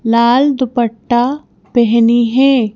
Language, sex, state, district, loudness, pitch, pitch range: Hindi, female, Madhya Pradesh, Bhopal, -13 LUFS, 240 Hz, 230-260 Hz